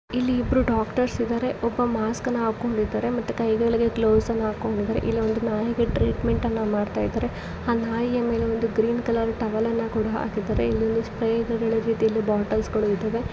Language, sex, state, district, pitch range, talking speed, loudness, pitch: Kannada, female, Karnataka, Shimoga, 220-235 Hz, 160 wpm, -24 LUFS, 225 Hz